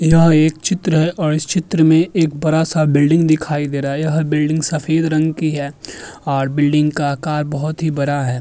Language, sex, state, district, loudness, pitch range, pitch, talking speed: Hindi, male, Uttar Pradesh, Jyotiba Phule Nagar, -16 LUFS, 150-160 Hz, 155 Hz, 205 wpm